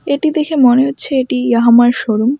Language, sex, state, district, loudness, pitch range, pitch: Bengali, female, West Bengal, Alipurduar, -12 LUFS, 240-285 Hz, 255 Hz